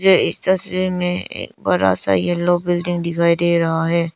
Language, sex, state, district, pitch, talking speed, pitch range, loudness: Hindi, female, Arunachal Pradesh, Lower Dibang Valley, 175 Hz, 190 wpm, 170-180 Hz, -18 LUFS